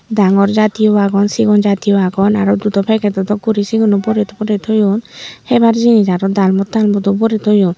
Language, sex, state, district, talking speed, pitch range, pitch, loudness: Chakma, female, Tripura, Unakoti, 160 wpm, 200-215 Hz, 210 Hz, -13 LUFS